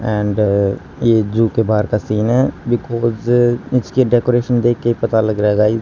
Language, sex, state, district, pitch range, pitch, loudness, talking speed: Hindi, male, Haryana, Charkhi Dadri, 105-120 Hz, 115 Hz, -16 LUFS, 205 wpm